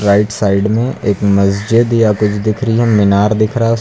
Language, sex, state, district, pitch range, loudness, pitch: Hindi, male, Uttar Pradesh, Lucknow, 100-115 Hz, -13 LUFS, 105 Hz